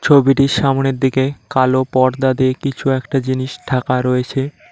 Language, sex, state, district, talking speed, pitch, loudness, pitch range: Bengali, male, West Bengal, Cooch Behar, 140 wpm, 130 Hz, -16 LUFS, 130-135 Hz